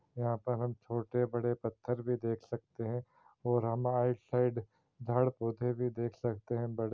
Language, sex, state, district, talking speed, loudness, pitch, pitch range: Hindi, male, Bihar, Saran, 140 wpm, -35 LUFS, 120 Hz, 115-125 Hz